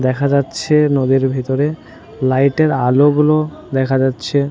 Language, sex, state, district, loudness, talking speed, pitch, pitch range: Bengali, male, West Bengal, Jhargram, -15 LUFS, 135 wpm, 140 Hz, 130-150 Hz